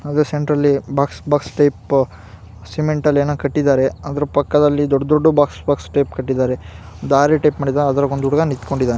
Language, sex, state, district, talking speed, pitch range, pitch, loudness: Kannada, female, Karnataka, Gulbarga, 160 wpm, 130-145 Hz, 140 Hz, -17 LUFS